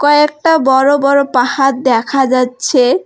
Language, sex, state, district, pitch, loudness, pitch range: Bengali, female, West Bengal, Alipurduar, 270 Hz, -12 LUFS, 255-290 Hz